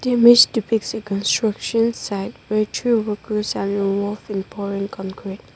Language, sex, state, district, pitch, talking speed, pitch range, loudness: English, female, Nagaland, Dimapur, 210 Hz, 160 wpm, 200-225 Hz, -20 LUFS